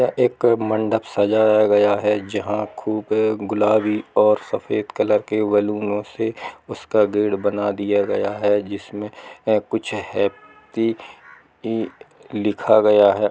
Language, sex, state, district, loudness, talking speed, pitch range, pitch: Hindi, male, Jharkhand, Jamtara, -20 LUFS, 125 wpm, 105-110 Hz, 105 Hz